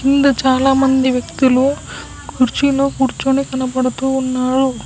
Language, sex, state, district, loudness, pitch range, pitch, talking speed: Telugu, female, Telangana, Mahabubabad, -15 LUFS, 255-270 Hz, 265 Hz, 85 wpm